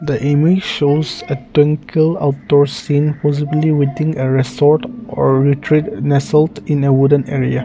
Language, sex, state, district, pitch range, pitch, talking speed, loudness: English, male, Nagaland, Kohima, 140-155 Hz, 145 Hz, 150 wpm, -15 LUFS